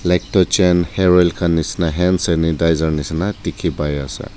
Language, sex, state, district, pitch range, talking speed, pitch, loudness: Nagamese, male, Nagaland, Dimapur, 80-90 Hz, 190 wpm, 85 Hz, -17 LUFS